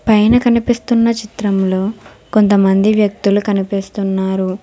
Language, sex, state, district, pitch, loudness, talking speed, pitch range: Telugu, female, Telangana, Hyderabad, 205 Hz, -14 LUFS, 80 wpm, 195-220 Hz